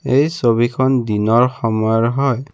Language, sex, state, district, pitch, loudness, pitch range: Assamese, male, Assam, Kamrup Metropolitan, 120 Hz, -16 LUFS, 115-130 Hz